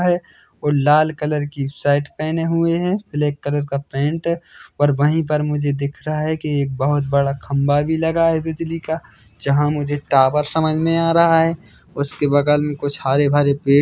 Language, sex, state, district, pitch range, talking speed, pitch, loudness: Hindi, male, Chhattisgarh, Bilaspur, 145-160 Hz, 195 wpm, 145 Hz, -19 LUFS